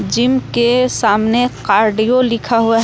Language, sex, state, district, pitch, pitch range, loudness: Hindi, female, Jharkhand, Palamu, 235 Hz, 220-250 Hz, -14 LUFS